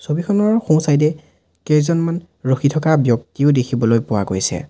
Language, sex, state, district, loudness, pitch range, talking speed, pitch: Assamese, male, Assam, Sonitpur, -17 LUFS, 130-165 Hz, 140 wpm, 150 Hz